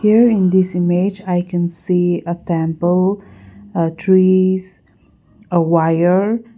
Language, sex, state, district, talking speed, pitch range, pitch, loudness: English, female, Nagaland, Kohima, 120 wpm, 170-190 Hz, 180 Hz, -16 LUFS